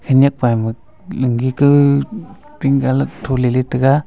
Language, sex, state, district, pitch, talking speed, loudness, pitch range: Wancho, male, Arunachal Pradesh, Longding, 135 Hz, 160 wpm, -15 LUFS, 125-140 Hz